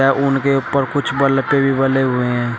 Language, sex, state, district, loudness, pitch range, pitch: Hindi, male, Uttar Pradesh, Shamli, -16 LUFS, 130-140 Hz, 135 Hz